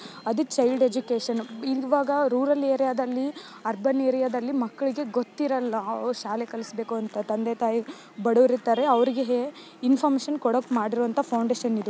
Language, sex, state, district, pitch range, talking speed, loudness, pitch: Kannada, female, Karnataka, Mysore, 230-270 Hz, 125 wpm, -25 LUFS, 250 Hz